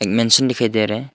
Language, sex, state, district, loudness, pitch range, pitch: Hindi, male, Arunachal Pradesh, Longding, -16 LUFS, 110-125 Hz, 115 Hz